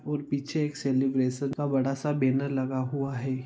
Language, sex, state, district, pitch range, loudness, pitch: Hindi, male, Goa, North and South Goa, 130-140 Hz, -28 LUFS, 135 Hz